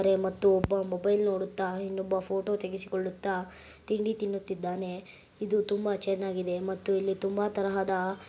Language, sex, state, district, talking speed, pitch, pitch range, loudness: Kannada, female, Karnataka, Gulbarga, 125 wpm, 195 Hz, 190-200 Hz, -30 LUFS